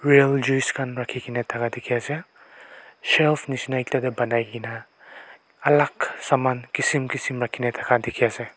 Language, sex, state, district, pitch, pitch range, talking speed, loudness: Nagamese, male, Nagaland, Kohima, 125 Hz, 120-135 Hz, 175 wpm, -23 LUFS